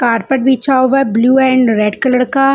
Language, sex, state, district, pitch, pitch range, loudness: Hindi, female, Punjab, Fazilka, 260 Hz, 235-265 Hz, -12 LUFS